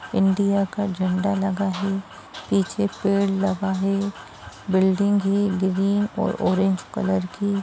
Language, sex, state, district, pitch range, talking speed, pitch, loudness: Hindi, female, Bihar, Jamui, 190-200 Hz, 125 wpm, 195 Hz, -22 LUFS